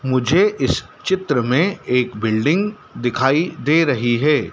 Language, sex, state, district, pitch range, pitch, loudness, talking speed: Hindi, male, Madhya Pradesh, Dhar, 125-175 Hz, 145 Hz, -18 LUFS, 130 wpm